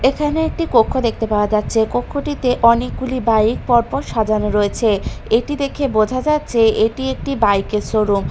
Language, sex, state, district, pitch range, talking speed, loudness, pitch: Bengali, female, Bihar, Katihar, 215-265 Hz, 160 wpm, -17 LUFS, 235 Hz